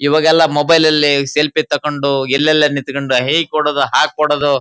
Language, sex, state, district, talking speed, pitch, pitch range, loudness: Kannada, male, Karnataka, Shimoga, 105 wpm, 150 Hz, 140-155 Hz, -13 LUFS